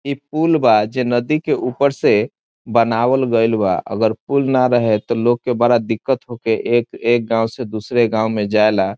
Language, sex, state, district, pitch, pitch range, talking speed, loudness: Bhojpuri, male, Bihar, Saran, 120 Hz, 110-125 Hz, 195 wpm, -17 LUFS